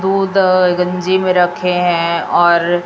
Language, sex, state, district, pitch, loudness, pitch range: Hindi, female, Chhattisgarh, Raipur, 180 Hz, -13 LUFS, 175-185 Hz